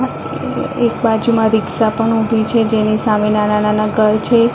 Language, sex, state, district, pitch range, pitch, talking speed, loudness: Gujarati, female, Maharashtra, Mumbai Suburban, 215-225 Hz, 220 Hz, 160 wpm, -15 LUFS